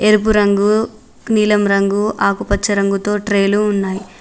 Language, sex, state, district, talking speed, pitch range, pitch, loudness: Telugu, female, Telangana, Mahabubabad, 115 wpm, 195-210 Hz, 205 Hz, -15 LUFS